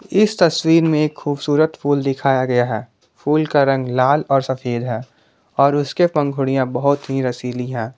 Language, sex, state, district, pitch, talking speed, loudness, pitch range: Hindi, male, Jharkhand, Ranchi, 135 Hz, 175 wpm, -18 LUFS, 125-150 Hz